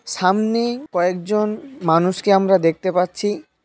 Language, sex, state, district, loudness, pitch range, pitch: Bengali, male, West Bengal, Malda, -19 LUFS, 180-215 Hz, 190 Hz